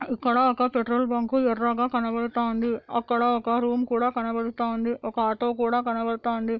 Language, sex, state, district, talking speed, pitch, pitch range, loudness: Telugu, female, Andhra Pradesh, Anantapur, 155 wpm, 235 Hz, 230-245 Hz, -25 LUFS